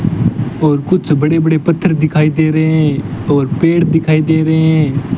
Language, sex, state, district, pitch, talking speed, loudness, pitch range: Hindi, male, Rajasthan, Bikaner, 155 Hz, 175 wpm, -13 LUFS, 150-160 Hz